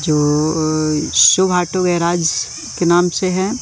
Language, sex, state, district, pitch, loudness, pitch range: Hindi, male, Madhya Pradesh, Katni, 170 Hz, -15 LUFS, 155-180 Hz